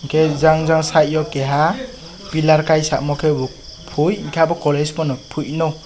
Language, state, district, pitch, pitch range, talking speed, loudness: Kokborok, Tripura, West Tripura, 155 Hz, 150-160 Hz, 175 wpm, -17 LUFS